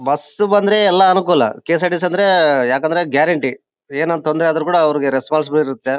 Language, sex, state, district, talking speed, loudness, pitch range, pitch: Kannada, male, Karnataka, Bellary, 140 wpm, -15 LUFS, 145-180 Hz, 160 Hz